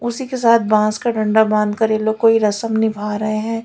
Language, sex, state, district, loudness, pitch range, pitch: Hindi, female, Delhi, New Delhi, -17 LUFS, 215-230 Hz, 220 Hz